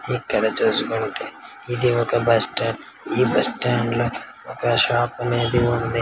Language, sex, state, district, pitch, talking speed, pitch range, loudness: Telugu, male, Telangana, Karimnagar, 120 Hz, 140 wpm, 115-120 Hz, -20 LUFS